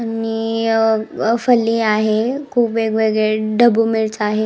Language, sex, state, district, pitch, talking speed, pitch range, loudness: Marathi, female, Maharashtra, Nagpur, 225 Hz, 120 wpm, 215-230 Hz, -17 LUFS